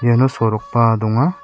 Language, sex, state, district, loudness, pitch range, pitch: Garo, male, Meghalaya, South Garo Hills, -16 LUFS, 115-130 Hz, 120 Hz